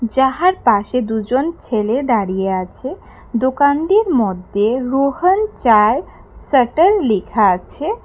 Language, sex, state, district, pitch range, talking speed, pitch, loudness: Bengali, female, Tripura, West Tripura, 220-305 Hz, 95 wpm, 255 Hz, -16 LUFS